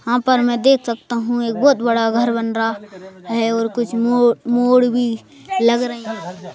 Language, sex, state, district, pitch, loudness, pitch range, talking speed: Hindi, male, Madhya Pradesh, Bhopal, 235 Hz, -17 LUFS, 225-245 Hz, 190 wpm